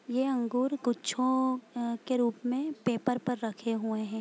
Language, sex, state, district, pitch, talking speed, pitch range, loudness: Hindi, female, Bihar, Gopalganj, 245 Hz, 170 wpm, 230-255 Hz, -31 LUFS